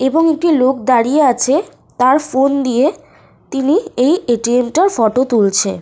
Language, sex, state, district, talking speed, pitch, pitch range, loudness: Bengali, female, Jharkhand, Sahebganj, 145 wpm, 265 Hz, 245-305 Hz, -14 LUFS